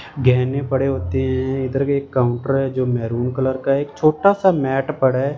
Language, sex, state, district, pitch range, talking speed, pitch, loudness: Hindi, male, Punjab, Fazilka, 130-140 Hz, 210 wpm, 135 Hz, -19 LUFS